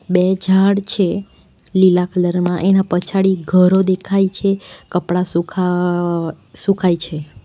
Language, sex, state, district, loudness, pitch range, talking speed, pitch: Gujarati, female, Gujarat, Valsad, -16 LUFS, 175-190 Hz, 130 wpm, 180 Hz